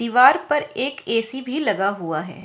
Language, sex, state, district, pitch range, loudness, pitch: Hindi, female, Bihar, Katihar, 195-270 Hz, -21 LUFS, 235 Hz